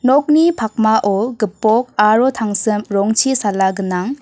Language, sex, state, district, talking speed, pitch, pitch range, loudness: Garo, female, Meghalaya, West Garo Hills, 115 wpm, 220 Hz, 205-250 Hz, -15 LUFS